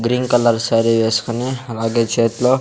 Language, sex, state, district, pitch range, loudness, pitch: Telugu, male, Andhra Pradesh, Sri Satya Sai, 115-125 Hz, -17 LUFS, 115 Hz